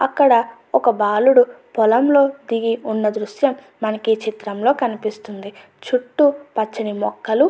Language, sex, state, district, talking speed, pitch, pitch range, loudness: Telugu, female, Andhra Pradesh, Anantapur, 110 wpm, 230 Hz, 215-260 Hz, -18 LUFS